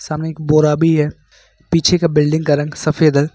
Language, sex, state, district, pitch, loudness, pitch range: Hindi, male, Uttar Pradesh, Lucknow, 155 Hz, -15 LUFS, 150-160 Hz